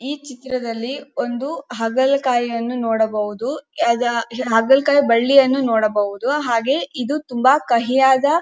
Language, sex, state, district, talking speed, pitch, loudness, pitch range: Kannada, female, Karnataka, Dharwad, 100 wpm, 250 Hz, -18 LUFS, 230-275 Hz